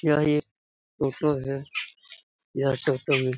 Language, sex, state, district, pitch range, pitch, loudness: Hindi, male, Bihar, Jamui, 135-150 Hz, 135 Hz, -27 LUFS